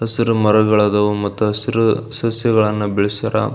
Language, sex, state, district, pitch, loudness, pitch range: Kannada, male, Karnataka, Belgaum, 110 Hz, -16 LUFS, 105-115 Hz